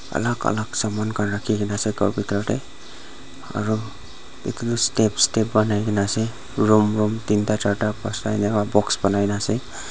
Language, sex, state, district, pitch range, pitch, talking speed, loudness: Nagamese, male, Nagaland, Dimapur, 105-110 Hz, 105 Hz, 150 wpm, -22 LUFS